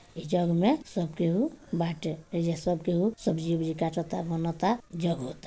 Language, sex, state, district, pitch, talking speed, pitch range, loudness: Bhojpuri, female, Bihar, Gopalganj, 170 Hz, 175 wpm, 165-185 Hz, -29 LUFS